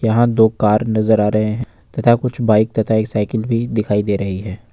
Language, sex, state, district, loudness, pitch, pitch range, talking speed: Hindi, male, Jharkhand, Ranchi, -16 LUFS, 110 Hz, 105-115 Hz, 230 wpm